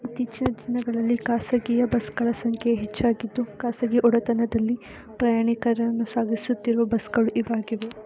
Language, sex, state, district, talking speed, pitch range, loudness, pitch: Kannada, female, Karnataka, Bellary, 110 wpm, 230-240 Hz, -24 LUFS, 235 Hz